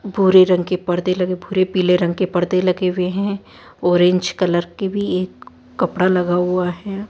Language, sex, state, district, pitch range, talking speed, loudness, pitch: Hindi, female, Rajasthan, Jaipur, 180-190 Hz, 185 wpm, -18 LUFS, 180 Hz